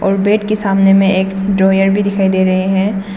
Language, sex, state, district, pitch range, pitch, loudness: Hindi, female, Arunachal Pradesh, Papum Pare, 190-200 Hz, 195 Hz, -13 LUFS